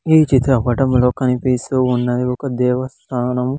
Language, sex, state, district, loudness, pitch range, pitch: Telugu, male, Andhra Pradesh, Sri Satya Sai, -17 LUFS, 125-130 Hz, 125 Hz